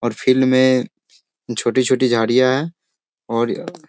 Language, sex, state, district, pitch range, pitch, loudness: Hindi, male, Bihar, Sitamarhi, 120-130 Hz, 130 Hz, -17 LUFS